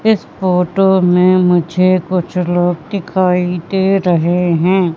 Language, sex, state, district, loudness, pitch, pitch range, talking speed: Hindi, female, Madhya Pradesh, Katni, -13 LUFS, 180 Hz, 175-190 Hz, 120 wpm